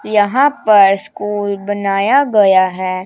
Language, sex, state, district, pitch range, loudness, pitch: Hindi, female, Chandigarh, Chandigarh, 195-210 Hz, -13 LUFS, 205 Hz